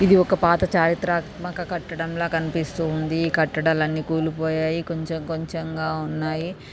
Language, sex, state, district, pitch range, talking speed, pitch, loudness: Telugu, female, Telangana, Karimnagar, 160-170 Hz, 125 wpm, 165 Hz, -23 LUFS